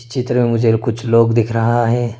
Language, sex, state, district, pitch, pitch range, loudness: Hindi, male, Arunachal Pradesh, Lower Dibang Valley, 115 Hz, 115-120 Hz, -15 LUFS